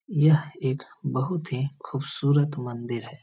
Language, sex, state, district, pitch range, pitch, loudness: Hindi, male, Bihar, Lakhisarai, 130-155 Hz, 140 Hz, -26 LUFS